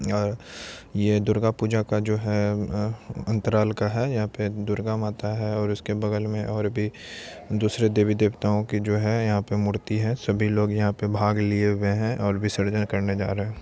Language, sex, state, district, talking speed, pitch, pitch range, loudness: Hindi, male, Bihar, Supaul, 180 wpm, 105 Hz, 105-110 Hz, -25 LUFS